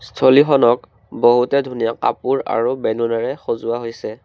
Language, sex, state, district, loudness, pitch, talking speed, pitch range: Assamese, male, Assam, Kamrup Metropolitan, -17 LUFS, 120 Hz, 115 wpm, 115-130 Hz